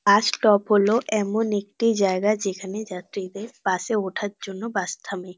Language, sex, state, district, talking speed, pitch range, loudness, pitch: Bengali, female, West Bengal, North 24 Parganas, 155 wpm, 195-215 Hz, -23 LUFS, 205 Hz